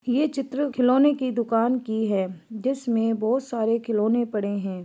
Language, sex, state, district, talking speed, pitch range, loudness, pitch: Hindi, female, Chhattisgarh, Bastar, 160 wpm, 220-255 Hz, -24 LUFS, 235 Hz